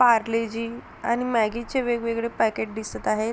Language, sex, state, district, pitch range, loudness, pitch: Marathi, female, Maharashtra, Sindhudurg, 225-235 Hz, -25 LUFS, 230 Hz